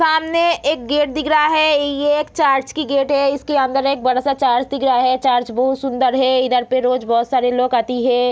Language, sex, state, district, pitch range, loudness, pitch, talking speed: Hindi, female, Bihar, Kishanganj, 250-295 Hz, -17 LUFS, 265 Hz, 260 wpm